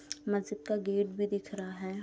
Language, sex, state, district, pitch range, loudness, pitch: Hindi, female, Bihar, Gopalganj, 200-210 Hz, -34 LUFS, 205 Hz